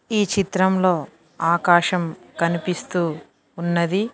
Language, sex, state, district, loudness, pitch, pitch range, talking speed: Telugu, female, Telangana, Mahabubabad, -21 LUFS, 175 Hz, 170-185 Hz, 70 wpm